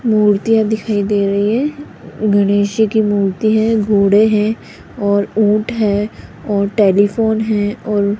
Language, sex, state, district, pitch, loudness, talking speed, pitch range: Hindi, female, Rajasthan, Jaipur, 210 Hz, -15 LUFS, 145 wpm, 205-220 Hz